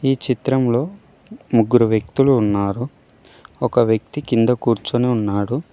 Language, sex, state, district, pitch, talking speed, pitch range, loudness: Telugu, male, Telangana, Mahabubabad, 120 Hz, 115 wpm, 115-135 Hz, -18 LUFS